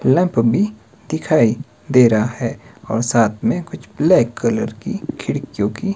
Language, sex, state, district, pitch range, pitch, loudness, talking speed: Hindi, male, Himachal Pradesh, Shimla, 115-155 Hz, 120 Hz, -18 LUFS, 150 wpm